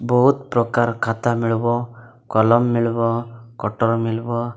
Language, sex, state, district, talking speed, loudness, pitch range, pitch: Odia, male, Odisha, Malkangiri, 120 wpm, -20 LUFS, 115-120 Hz, 115 Hz